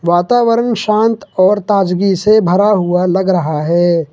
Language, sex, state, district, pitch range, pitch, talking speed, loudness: Hindi, male, Jharkhand, Ranchi, 175-215 Hz, 190 Hz, 145 wpm, -12 LUFS